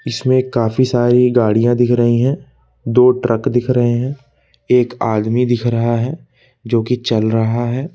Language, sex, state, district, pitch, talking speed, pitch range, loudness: Hindi, male, Madhya Pradesh, Bhopal, 120 Hz, 160 wpm, 115-125 Hz, -15 LUFS